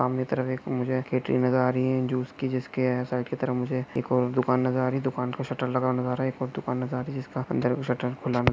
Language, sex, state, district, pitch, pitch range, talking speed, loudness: Hindi, male, Maharashtra, Nagpur, 130 Hz, 125-130 Hz, 315 wpm, -27 LUFS